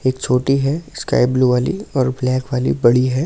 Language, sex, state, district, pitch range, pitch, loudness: Hindi, male, Delhi, New Delhi, 125-135 Hz, 130 Hz, -17 LUFS